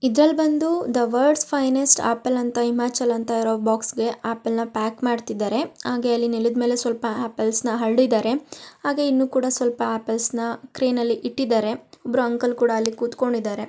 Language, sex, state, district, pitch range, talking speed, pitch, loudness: Kannada, female, Karnataka, Mysore, 230-255 Hz, 120 wpm, 240 Hz, -22 LUFS